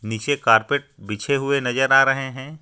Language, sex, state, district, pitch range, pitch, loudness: Hindi, male, Jharkhand, Ranchi, 115-140 Hz, 135 Hz, -19 LUFS